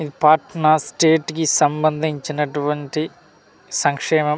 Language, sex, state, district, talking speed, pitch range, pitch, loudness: Telugu, male, Andhra Pradesh, Manyam, 95 wpm, 150-160 Hz, 155 Hz, -19 LUFS